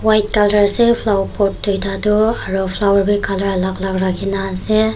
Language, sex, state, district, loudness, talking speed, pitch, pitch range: Nagamese, female, Nagaland, Kohima, -16 LUFS, 205 wpm, 200 Hz, 195-215 Hz